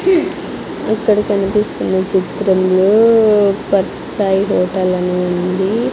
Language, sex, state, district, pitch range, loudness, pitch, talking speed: Telugu, female, Andhra Pradesh, Sri Satya Sai, 185-210 Hz, -15 LUFS, 195 Hz, 70 wpm